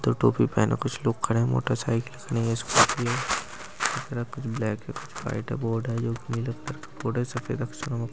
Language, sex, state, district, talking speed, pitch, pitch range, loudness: Hindi, male, Maharashtra, Chandrapur, 235 wpm, 115 Hz, 115-130 Hz, -27 LUFS